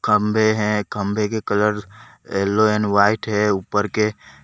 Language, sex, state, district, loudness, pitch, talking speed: Hindi, male, Jharkhand, Deoghar, -19 LUFS, 105 Hz, 160 wpm